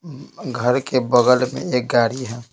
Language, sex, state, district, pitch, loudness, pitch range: Hindi, male, Bihar, Patna, 125 Hz, -19 LUFS, 120-130 Hz